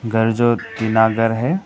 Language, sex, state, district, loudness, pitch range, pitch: Hindi, male, Arunachal Pradesh, Papum Pare, -17 LUFS, 110-120 Hz, 115 Hz